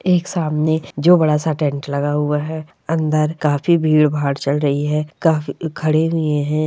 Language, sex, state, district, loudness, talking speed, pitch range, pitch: Hindi, female, Bihar, Purnia, -18 LUFS, 180 wpm, 145-160 Hz, 150 Hz